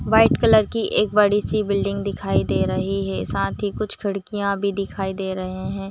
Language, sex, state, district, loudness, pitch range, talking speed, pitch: Hindi, female, Chhattisgarh, Bilaspur, -21 LUFS, 185-205 Hz, 205 wpm, 200 Hz